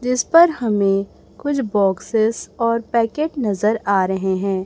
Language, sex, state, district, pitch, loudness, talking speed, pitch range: Hindi, male, Chhattisgarh, Raipur, 220 Hz, -19 LUFS, 140 wpm, 195-250 Hz